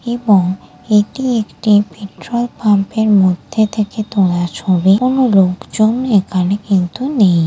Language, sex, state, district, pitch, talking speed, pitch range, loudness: Bengali, female, West Bengal, Dakshin Dinajpur, 205 Hz, 110 wpm, 190-225 Hz, -14 LUFS